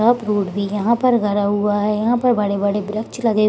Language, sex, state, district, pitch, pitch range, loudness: Hindi, female, Bihar, Gaya, 210 Hz, 205-235 Hz, -18 LUFS